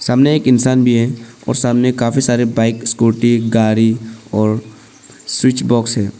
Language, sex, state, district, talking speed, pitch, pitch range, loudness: Hindi, male, Arunachal Pradesh, Papum Pare, 155 wpm, 120 Hz, 115-125 Hz, -14 LUFS